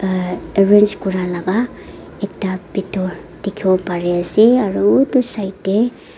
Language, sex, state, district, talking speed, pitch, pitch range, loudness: Nagamese, female, Nagaland, Dimapur, 125 wpm, 195 Hz, 185-210 Hz, -17 LUFS